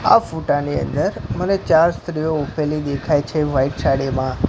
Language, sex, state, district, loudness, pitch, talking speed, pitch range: Gujarati, male, Gujarat, Gandhinagar, -19 LUFS, 145 Hz, 160 wpm, 135-160 Hz